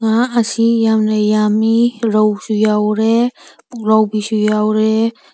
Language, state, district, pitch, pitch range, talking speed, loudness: Manipuri, Manipur, Imphal West, 220 Hz, 215-230 Hz, 100 wpm, -14 LUFS